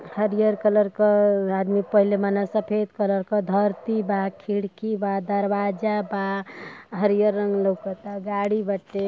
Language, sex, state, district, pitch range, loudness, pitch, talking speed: Bhojpuri, female, Uttar Pradesh, Ghazipur, 200-210 Hz, -23 LUFS, 205 Hz, 130 wpm